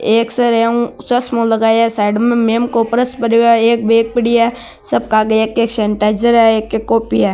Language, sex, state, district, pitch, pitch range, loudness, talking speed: Marwari, male, Rajasthan, Nagaur, 230 Hz, 220-235 Hz, -13 LUFS, 220 wpm